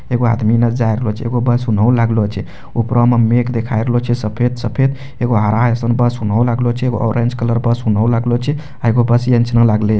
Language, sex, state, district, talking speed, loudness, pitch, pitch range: Maithili, male, Bihar, Bhagalpur, 190 wpm, -15 LUFS, 120 Hz, 115-120 Hz